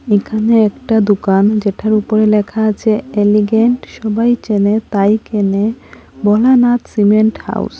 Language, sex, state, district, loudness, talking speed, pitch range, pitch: Bengali, female, Assam, Hailakandi, -13 LUFS, 125 wpm, 205-225 Hz, 215 Hz